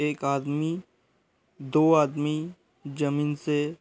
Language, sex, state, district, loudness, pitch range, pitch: Hindi, male, Uttar Pradesh, Hamirpur, -26 LUFS, 145-155 Hz, 150 Hz